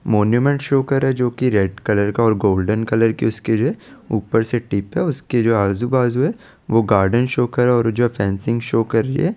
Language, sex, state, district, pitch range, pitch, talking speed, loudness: Hindi, male, Chandigarh, Chandigarh, 110-125 Hz, 115 Hz, 210 wpm, -18 LUFS